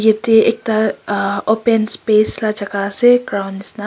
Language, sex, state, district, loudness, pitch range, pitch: Nagamese, male, Nagaland, Kohima, -16 LUFS, 205-220 Hz, 215 Hz